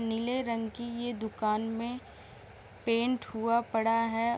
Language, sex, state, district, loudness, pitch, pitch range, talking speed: Hindi, female, Bihar, East Champaran, -31 LUFS, 230 Hz, 225-240 Hz, 135 wpm